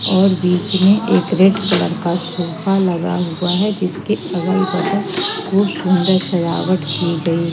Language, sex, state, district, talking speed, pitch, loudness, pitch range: Hindi, female, Madhya Pradesh, Katni, 150 wpm, 185 Hz, -16 LUFS, 175-195 Hz